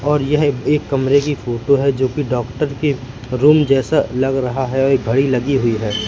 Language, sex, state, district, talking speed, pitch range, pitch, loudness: Hindi, male, Madhya Pradesh, Katni, 215 wpm, 125-145 Hz, 135 Hz, -17 LUFS